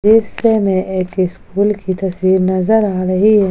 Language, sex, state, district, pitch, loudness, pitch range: Hindi, female, Jharkhand, Palamu, 190 Hz, -15 LUFS, 185-210 Hz